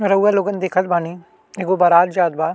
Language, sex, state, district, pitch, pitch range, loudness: Bhojpuri, male, Uttar Pradesh, Deoria, 185 Hz, 175-195 Hz, -17 LUFS